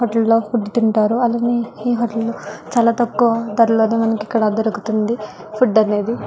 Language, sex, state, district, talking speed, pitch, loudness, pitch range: Telugu, female, Andhra Pradesh, Guntur, 155 wpm, 225 Hz, -17 LUFS, 220-235 Hz